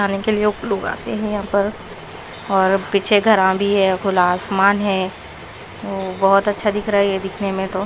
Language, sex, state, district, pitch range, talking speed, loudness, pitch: Hindi, female, Punjab, Pathankot, 190-205 Hz, 190 wpm, -18 LUFS, 195 Hz